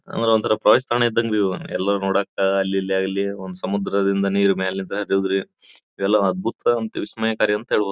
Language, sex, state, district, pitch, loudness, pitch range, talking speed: Kannada, male, Karnataka, Bijapur, 100 Hz, -21 LUFS, 95-110 Hz, 165 wpm